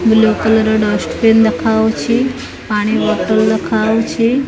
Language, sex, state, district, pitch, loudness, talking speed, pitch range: Odia, female, Odisha, Khordha, 220 Hz, -14 LUFS, 105 wpm, 215-230 Hz